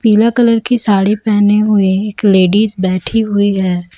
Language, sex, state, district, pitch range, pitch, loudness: Hindi, female, Chhattisgarh, Raipur, 190-220 Hz, 205 Hz, -12 LUFS